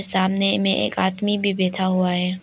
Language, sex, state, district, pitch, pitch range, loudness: Hindi, female, Arunachal Pradesh, Lower Dibang Valley, 190 Hz, 185-195 Hz, -20 LUFS